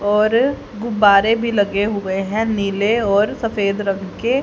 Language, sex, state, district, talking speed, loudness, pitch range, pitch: Hindi, female, Haryana, Charkhi Dadri, 150 wpm, -17 LUFS, 200-225 Hz, 210 Hz